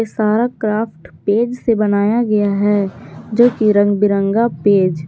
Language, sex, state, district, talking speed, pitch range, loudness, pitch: Hindi, female, Jharkhand, Garhwa, 155 wpm, 200-225 Hz, -15 LUFS, 210 Hz